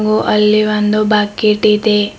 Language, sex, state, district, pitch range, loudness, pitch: Kannada, female, Karnataka, Bidar, 210-215 Hz, -13 LUFS, 210 Hz